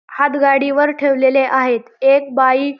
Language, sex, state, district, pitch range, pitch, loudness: Marathi, male, Maharashtra, Pune, 265-280 Hz, 275 Hz, -14 LUFS